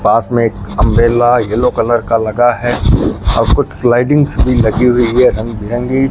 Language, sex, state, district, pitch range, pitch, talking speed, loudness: Hindi, male, Rajasthan, Bikaner, 115-125 Hz, 120 Hz, 175 wpm, -12 LUFS